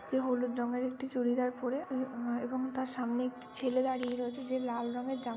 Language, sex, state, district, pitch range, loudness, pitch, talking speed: Bengali, female, West Bengal, Malda, 245-260 Hz, -35 LUFS, 250 Hz, 210 wpm